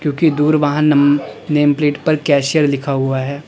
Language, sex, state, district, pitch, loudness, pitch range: Hindi, male, Uttar Pradesh, Lalitpur, 145 Hz, -15 LUFS, 140-150 Hz